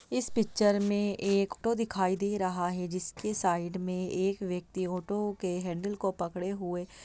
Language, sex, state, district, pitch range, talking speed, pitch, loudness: Hindi, female, Bihar, Jahanabad, 180-205 Hz, 170 wpm, 190 Hz, -31 LUFS